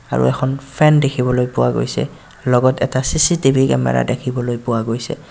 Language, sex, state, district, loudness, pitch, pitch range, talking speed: Assamese, male, Assam, Kamrup Metropolitan, -17 LUFS, 125 Hz, 115-135 Hz, 145 wpm